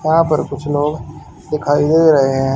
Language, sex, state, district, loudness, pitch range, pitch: Hindi, male, Haryana, Charkhi Dadri, -15 LUFS, 140-155 Hz, 150 Hz